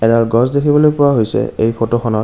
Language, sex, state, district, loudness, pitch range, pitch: Assamese, male, Assam, Kamrup Metropolitan, -14 LUFS, 115-140 Hz, 115 Hz